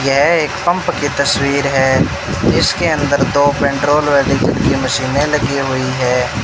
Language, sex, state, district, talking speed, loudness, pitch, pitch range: Hindi, male, Rajasthan, Bikaner, 150 wpm, -14 LUFS, 140 Hz, 135-145 Hz